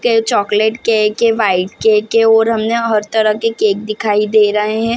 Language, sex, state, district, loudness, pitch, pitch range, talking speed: Hindi, female, Bihar, Madhepura, -13 LUFS, 220 Hz, 210-225 Hz, 230 wpm